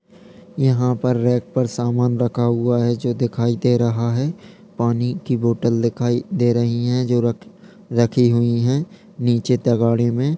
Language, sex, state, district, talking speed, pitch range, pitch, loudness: Hindi, male, Bihar, Jamui, 155 wpm, 120-125 Hz, 120 Hz, -19 LUFS